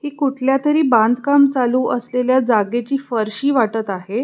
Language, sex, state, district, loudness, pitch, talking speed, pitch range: Marathi, female, Maharashtra, Pune, -17 LUFS, 250 Hz, 140 wpm, 230-275 Hz